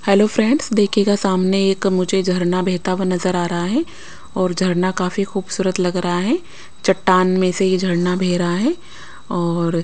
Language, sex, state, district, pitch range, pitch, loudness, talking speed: Hindi, female, Bihar, West Champaran, 180-195 Hz, 185 Hz, -18 LUFS, 185 wpm